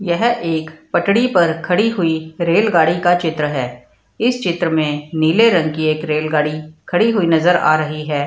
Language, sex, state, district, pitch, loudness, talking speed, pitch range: Hindi, female, Bihar, Madhepura, 160 Hz, -16 LUFS, 175 wpm, 155-175 Hz